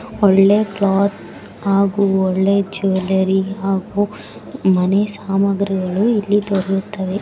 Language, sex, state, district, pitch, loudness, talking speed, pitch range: Kannada, female, Karnataka, Bellary, 195 Hz, -17 LUFS, 85 wpm, 190-200 Hz